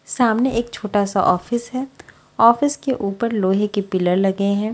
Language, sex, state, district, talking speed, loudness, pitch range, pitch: Hindi, female, Punjab, Fazilka, 190 wpm, -19 LUFS, 200-240 Hz, 215 Hz